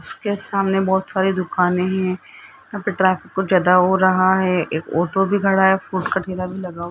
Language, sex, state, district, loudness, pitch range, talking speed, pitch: Hindi, male, Rajasthan, Jaipur, -19 LUFS, 185-195 Hz, 180 wpm, 190 Hz